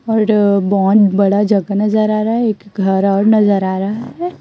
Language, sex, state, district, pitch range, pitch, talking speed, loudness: Hindi, female, Chhattisgarh, Raipur, 200-215 Hz, 205 Hz, 205 wpm, -14 LUFS